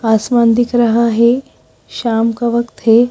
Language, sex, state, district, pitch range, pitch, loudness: Hindi, female, Madhya Pradesh, Bhopal, 230-240 Hz, 235 Hz, -13 LUFS